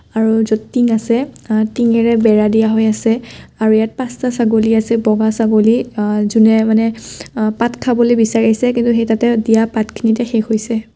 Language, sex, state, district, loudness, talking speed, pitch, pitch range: Assamese, female, Assam, Kamrup Metropolitan, -14 LUFS, 165 wpm, 225 Hz, 220-235 Hz